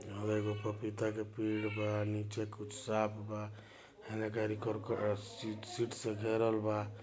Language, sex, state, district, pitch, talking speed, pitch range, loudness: Bhojpuri, male, Bihar, Gopalganj, 110 Hz, 145 wpm, 105-110 Hz, -38 LUFS